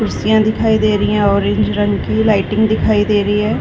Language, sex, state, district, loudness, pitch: Hindi, female, Chhattisgarh, Bilaspur, -14 LUFS, 210 Hz